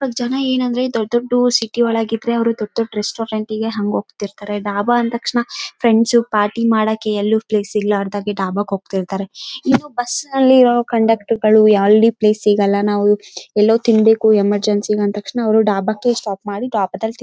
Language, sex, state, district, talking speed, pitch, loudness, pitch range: Kannada, female, Karnataka, Raichur, 145 wpm, 220 Hz, -16 LUFS, 205-235 Hz